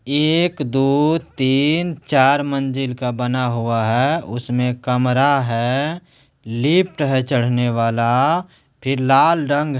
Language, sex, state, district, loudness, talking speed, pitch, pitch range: Hindi, male, Bihar, Supaul, -18 LUFS, 120 wpm, 135 Hz, 125-145 Hz